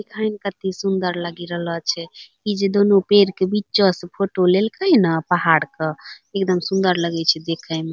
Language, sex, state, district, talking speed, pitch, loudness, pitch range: Angika, female, Bihar, Bhagalpur, 205 wpm, 185 Hz, -19 LUFS, 170-200 Hz